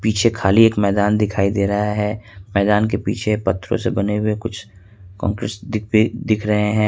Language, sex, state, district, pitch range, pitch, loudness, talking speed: Hindi, male, Jharkhand, Ranchi, 100-110 Hz, 105 Hz, -19 LUFS, 175 wpm